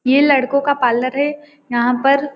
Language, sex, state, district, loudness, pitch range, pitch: Hindi, female, Uttar Pradesh, Varanasi, -16 LUFS, 255-285 Hz, 275 Hz